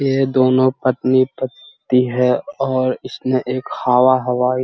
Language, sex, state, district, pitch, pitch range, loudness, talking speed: Hindi, male, Bihar, Jahanabad, 130 Hz, 125-130 Hz, -17 LUFS, 115 wpm